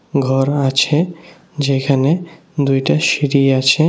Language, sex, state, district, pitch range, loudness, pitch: Bengali, male, Tripura, West Tripura, 135-165 Hz, -16 LUFS, 140 Hz